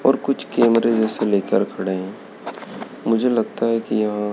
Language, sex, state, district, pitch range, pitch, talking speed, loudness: Hindi, male, Madhya Pradesh, Dhar, 105-115 Hz, 110 Hz, 165 wpm, -20 LUFS